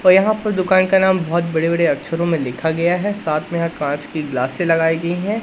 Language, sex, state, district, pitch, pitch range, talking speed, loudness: Hindi, male, Madhya Pradesh, Katni, 170 Hz, 160-185 Hz, 255 wpm, -18 LUFS